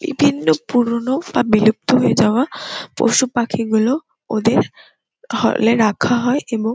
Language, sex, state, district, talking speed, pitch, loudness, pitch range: Bengali, female, West Bengal, Kolkata, 105 wpm, 240 Hz, -17 LUFS, 225-270 Hz